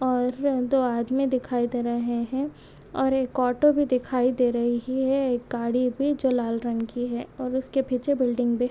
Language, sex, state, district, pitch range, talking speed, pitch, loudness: Hindi, female, Bihar, Supaul, 240-265 Hz, 195 wpm, 250 Hz, -25 LUFS